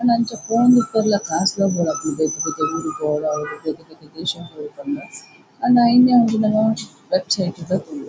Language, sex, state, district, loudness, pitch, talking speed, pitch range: Tulu, female, Karnataka, Dakshina Kannada, -19 LUFS, 185 Hz, 150 wpm, 155-225 Hz